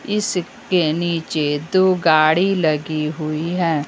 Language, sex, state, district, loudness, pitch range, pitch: Hindi, female, Bihar, West Champaran, -18 LUFS, 155-185 Hz, 165 Hz